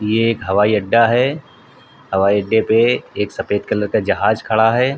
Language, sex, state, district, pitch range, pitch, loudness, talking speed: Hindi, male, Uttar Pradesh, Hamirpur, 105-115 Hz, 110 Hz, -16 LUFS, 155 wpm